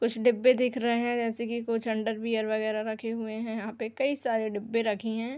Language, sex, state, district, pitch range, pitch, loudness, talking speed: Hindi, female, Uttar Pradesh, Hamirpur, 220-235 Hz, 225 Hz, -29 LUFS, 225 wpm